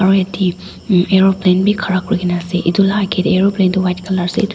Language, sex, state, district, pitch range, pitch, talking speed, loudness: Nagamese, female, Nagaland, Dimapur, 180-195 Hz, 190 Hz, 225 wpm, -15 LUFS